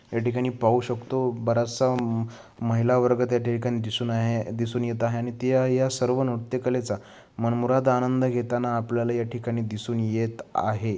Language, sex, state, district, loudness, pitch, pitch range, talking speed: Marathi, male, Maharashtra, Sindhudurg, -25 LUFS, 120 Hz, 115-125 Hz, 155 wpm